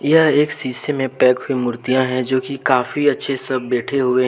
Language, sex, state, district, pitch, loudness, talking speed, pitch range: Hindi, male, Jharkhand, Deoghar, 130 Hz, -18 LUFS, 240 wpm, 125-140 Hz